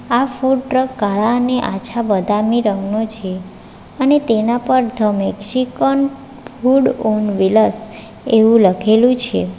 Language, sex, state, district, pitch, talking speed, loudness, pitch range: Gujarati, female, Gujarat, Valsad, 225 Hz, 120 wpm, -16 LUFS, 210-255 Hz